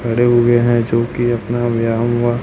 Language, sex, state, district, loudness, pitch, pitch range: Hindi, male, Chhattisgarh, Raipur, -15 LUFS, 120 Hz, 115-120 Hz